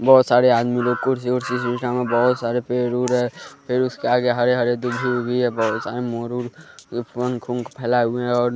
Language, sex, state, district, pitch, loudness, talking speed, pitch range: Hindi, male, Bihar, West Champaran, 125 Hz, -21 LUFS, 205 wpm, 120-125 Hz